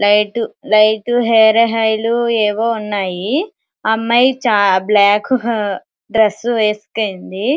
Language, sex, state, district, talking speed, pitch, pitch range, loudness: Telugu, female, Andhra Pradesh, Srikakulam, 85 wpm, 220 Hz, 210-235 Hz, -15 LUFS